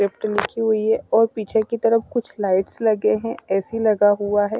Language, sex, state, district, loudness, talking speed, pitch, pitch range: Hindi, female, Himachal Pradesh, Shimla, -20 LUFS, 195 wpm, 215 Hz, 205-225 Hz